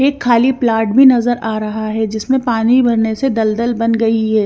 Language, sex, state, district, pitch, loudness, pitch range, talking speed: Hindi, female, Chandigarh, Chandigarh, 230 Hz, -14 LUFS, 220-245 Hz, 215 wpm